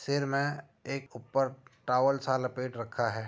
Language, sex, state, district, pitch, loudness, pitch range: Hindi, male, Uttar Pradesh, Jyotiba Phule Nagar, 135 Hz, -32 LUFS, 125-135 Hz